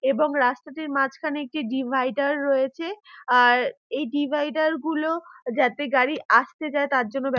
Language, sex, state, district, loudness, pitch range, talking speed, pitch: Bengali, female, West Bengal, Dakshin Dinajpur, -23 LUFS, 265-310 Hz, 140 wpm, 285 Hz